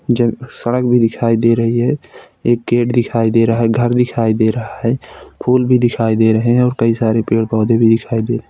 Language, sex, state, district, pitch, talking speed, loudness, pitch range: Hindi, male, Uttar Pradesh, Hamirpur, 115 Hz, 235 wpm, -15 LUFS, 115-120 Hz